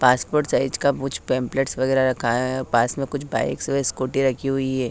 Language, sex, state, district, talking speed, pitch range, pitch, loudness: Hindi, female, Haryana, Charkhi Dadri, 210 wpm, 125-135 Hz, 130 Hz, -22 LUFS